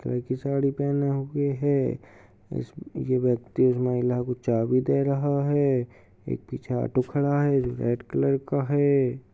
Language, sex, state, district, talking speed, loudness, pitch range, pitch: Hindi, male, Uttar Pradesh, Hamirpur, 175 wpm, -25 LUFS, 125-140 Hz, 130 Hz